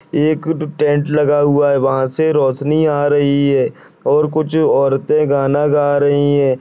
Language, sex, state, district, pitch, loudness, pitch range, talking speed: Hindi, male, Bihar, Purnia, 145 Hz, -14 LUFS, 140-150 Hz, 165 wpm